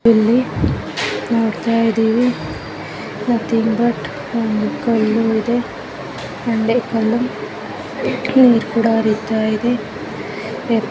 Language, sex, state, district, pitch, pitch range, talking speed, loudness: Kannada, female, Karnataka, Gulbarga, 230 Hz, 220-235 Hz, 80 wpm, -18 LUFS